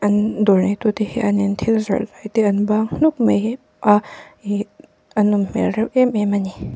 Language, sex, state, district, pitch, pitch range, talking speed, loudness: Mizo, female, Mizoram, Aizawl, 210 Hz, 205-220 Hz, 215 wpm, -18 LUFS